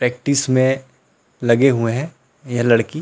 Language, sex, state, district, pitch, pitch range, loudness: Hindi, male, Chhattisgarh, Rajnandgaon, 130 Hz, 120-135 Hz, -18 LUFS